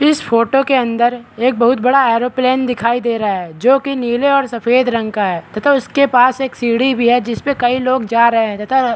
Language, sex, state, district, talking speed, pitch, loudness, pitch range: Hindi, male, Bihar, Kishanganj, 235 wpm, 245 Hz, -14 LUFS, 235-260 Hz